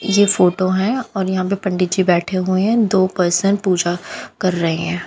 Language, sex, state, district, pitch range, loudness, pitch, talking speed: Hindi, female, Haryana, Jhajjar, 180-195 Hz, -17 LUFS, 185 Hz, 200 wpm